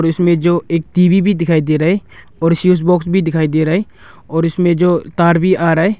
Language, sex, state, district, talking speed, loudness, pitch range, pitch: Hindi, male, Arunachal Pradesh, Longding, 250 wpm, -14 LUFS, 165-180 Hz, 170 Hz